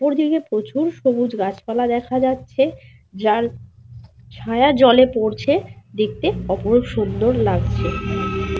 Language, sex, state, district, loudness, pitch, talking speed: Bengali, female, Jharkhand, Sahebganj, -19 LUFS, 225 Hz, 105 wpm